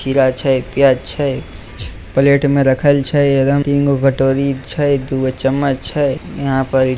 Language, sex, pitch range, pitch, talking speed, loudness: Maithili, male, 130-140 Hz, 135 Hz, 145 wpm, -15 LUFS